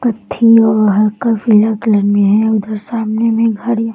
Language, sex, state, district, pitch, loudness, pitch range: Hindi, female, Bihar, Bhagalpur, 220 Hz, -12 LUFS, 210-230 Hz